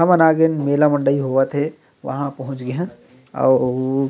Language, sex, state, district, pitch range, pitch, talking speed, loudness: Chhattisgarhi, male, Chhattisgarh, Rajnandgaon, 130-155 Hz, 140 Hz, 175 wpm, -19 LUFS